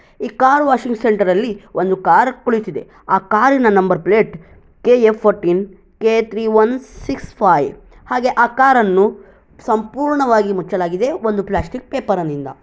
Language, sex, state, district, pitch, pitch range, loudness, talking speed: Kannada, female, Karnataka, Shimoga, 220 Hz, 190-245 Hz, -16 LUFS, 140 wpm